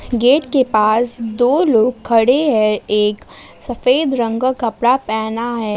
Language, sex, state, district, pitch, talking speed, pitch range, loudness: Hindi, female, Jharkhand, Palamu, 235 Hz, 145 wpm, 220-255 Hz, -15 LUFS